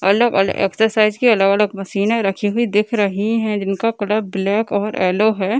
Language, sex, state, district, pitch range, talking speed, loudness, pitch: Hindi, female, Bihar, Gaya, 195-220 Hz, 170 wpm, -17 LUFS, 205 Hz